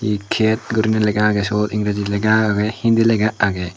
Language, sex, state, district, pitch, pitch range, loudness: Chakma, male, Tripura, Dhalai, 105 Hz, 105-110 Hz, -17 LUFS